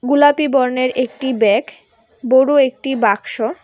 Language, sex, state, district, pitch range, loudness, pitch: Bengali, female, Tripura, West Tripura, 250-275 Hz, -15 LUFS, 260 Hz